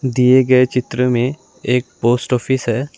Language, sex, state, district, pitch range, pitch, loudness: Hindi, male, Assam, Sonitpur, 120-130 Hz, 125 Hz, -16 LUFS